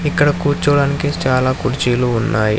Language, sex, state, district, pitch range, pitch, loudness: Telugu, male, Telangana, Hyderabad, 125-145 Hz, 140 Hz, -16 LUFS